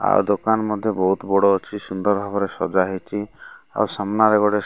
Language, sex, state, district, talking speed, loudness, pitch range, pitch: Odia, male, Odisha, Malkangiri, 180 wpm, -21 LUFS, 95-105 Hz, 100 Hz